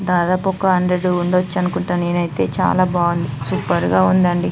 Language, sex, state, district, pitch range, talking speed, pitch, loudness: Telugu, female, Andhra Pradesh, Anantapur, 155-180 Hz, 145 wpm, 175 Hz, -17 LUFS